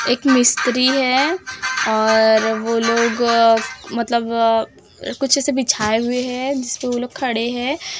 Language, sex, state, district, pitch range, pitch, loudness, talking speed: Hindi, female, Maharashtra, Gondia, 225-255 Hz, 235 Hz, -17 LUFS, 130 wpm